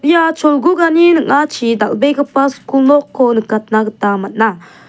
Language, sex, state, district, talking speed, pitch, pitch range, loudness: Garo, female, Meghalaya, South Garo Hills, 110 wpm, 275 Hz, 220-300 Hz, -12 LUFS